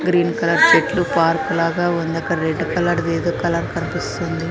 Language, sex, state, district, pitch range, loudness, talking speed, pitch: Telugu, female, Andhra Pradesh, Anantapur, 165-175 Hz, -18 LUFS, 175 wpm, 165 Hz